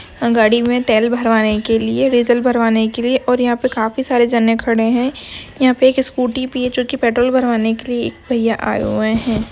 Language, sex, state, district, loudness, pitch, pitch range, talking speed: Hindi, female, Andhra Pradesh, Krishna, -15 LUFS, 240 Hz, 225-250 Hz, 210 wpm